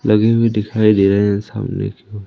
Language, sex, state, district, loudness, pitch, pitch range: Hindi, male, Madhya Pradesh, Umaria, -16 LUFS, 105 Hz, 105-115 Hz